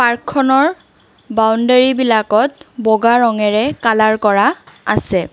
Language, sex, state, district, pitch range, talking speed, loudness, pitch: Assamese, female, Assam, Kamrup Metropolitan, 220-260 Hz, 80 wpm, -14 LUFS, 235 Hz